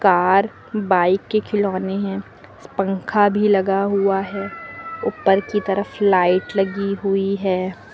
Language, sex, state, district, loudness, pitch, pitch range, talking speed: Hindi, female, Uttar Pradesh, Lucknow, -19 LUFS, 195 Hz, 195-205 Hz, 130 wpm